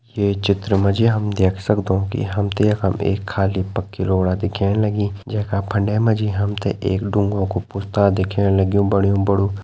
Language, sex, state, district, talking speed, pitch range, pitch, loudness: Hindi, male, Uttarakhand, Tehri Garhwal, 200 wpm, 95-105 Hz, 100 Hz, -19 LUFS